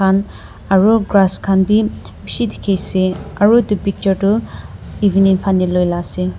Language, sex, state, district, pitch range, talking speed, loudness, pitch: Nagamese, female, Nagaland, Dimapur, 185-205 Hz, 130 wpm, -15 LUFS, 195 Hz